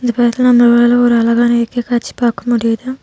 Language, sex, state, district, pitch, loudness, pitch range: Tamil, female, Tamil Nadu, Nilgiris, 240 Hz, -12 LUFS, 235-245 Hz